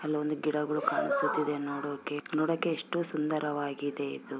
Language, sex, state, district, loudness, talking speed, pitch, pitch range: Kannada, female, Karnataka, Bellary, -31 LUFS, 120 wpm, 150 Hz, 145-155 Hz